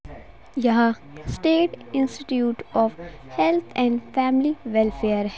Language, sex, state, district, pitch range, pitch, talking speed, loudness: Hindi, female, Bihar, Jahanabad, 220-270 Hz, 240 Hz, 100 wpm, -23 LUFS